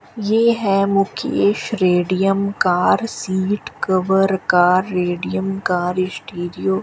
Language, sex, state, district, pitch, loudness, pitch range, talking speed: Hindi, female, Rajasthan, Bikaner, 190 Hz, -18 LUFS, 180-200 Hz, 105 wpm